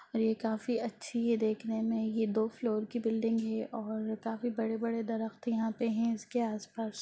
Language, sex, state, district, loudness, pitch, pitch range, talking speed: Hindi, female, Bihar, Jamui, -34 LUFS, 225 Hz, 220-230 Hz, 180 wpm